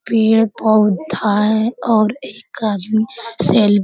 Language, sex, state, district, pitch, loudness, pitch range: Hindi, female, Bihar, Jamui, 220 Hz, -15 LUFS, 210-225 Hz